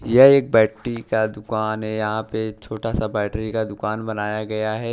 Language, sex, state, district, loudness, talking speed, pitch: Hindi, male, Maharashtra, Washim, -21 LUFS, 195 wpm, 110 Hz